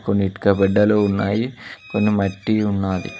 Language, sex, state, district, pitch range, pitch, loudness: Telugu, male, Telangana, Mahabubabad, 100-105 Hz, 100 Hz, -19 LUFS